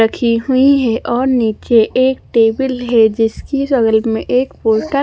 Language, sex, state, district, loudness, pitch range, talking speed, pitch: Hindi, female, Punjab, Fazilka, -14 LUFS, 225-260 Hz, 155 wpm, 235 Hz